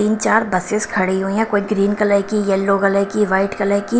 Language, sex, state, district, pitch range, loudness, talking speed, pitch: Hindi, female, Himachal Pradesh, Shimla, 195-210 Hz, -17 LUFS, 240 wpm, 200 Hz